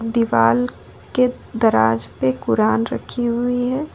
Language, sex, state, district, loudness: Hindi, female, Jharkhand, Ranchi, -19 LUFS